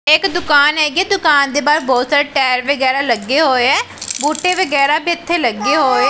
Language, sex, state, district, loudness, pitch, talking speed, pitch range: Punjabi, female, Punjab, Pathankot, -14 LUFS, 295 Hz, 195 wpm, 275-320 Hz